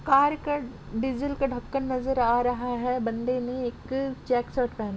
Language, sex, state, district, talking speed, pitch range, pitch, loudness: Hindi, female, Jharkhand, Sahebganj, 180 wpm, 245-270 Hz, 250 Hz, -27 LUFS